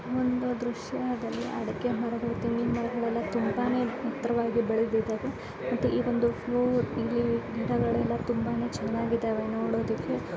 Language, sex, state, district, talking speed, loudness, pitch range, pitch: Kannada, female, Karnataka, Dharwad, 110 wpm, -29 LUFS, 225-245 Hz, 235 Hz